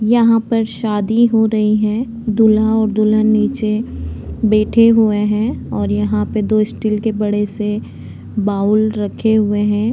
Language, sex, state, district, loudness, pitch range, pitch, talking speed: Hindi, female, Uttarakhand, Tehri Garhwal, -15 LUFS, 210-220 Hz, 215 Hz, 150 wpm